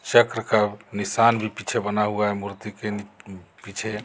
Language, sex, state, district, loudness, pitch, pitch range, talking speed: Hindi, male, Jharkhand, Garhwa, -24 LUFS, 105 Hz, 100-110 Hz, 175 wpm